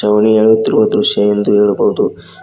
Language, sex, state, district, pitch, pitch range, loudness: Kannada, male, Karnataka, Koppal, 105 Hz, 105-110 Hz, -12 LUFS